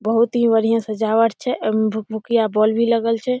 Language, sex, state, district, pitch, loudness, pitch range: Maithili, female, Bihar, Samastipur, 225 Hz, -18 LUFS, 220-230 Hz